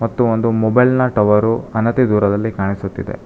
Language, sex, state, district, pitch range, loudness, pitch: Kannada, male, Karnataka, Bangalore, 105-115 Hz, -16 LUFS, 110 Hz